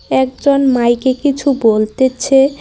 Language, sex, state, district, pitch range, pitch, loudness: Bengali, female, West Bengal, Cooch Behar, 250-275 Hz, 265 Hz, -13 LUFS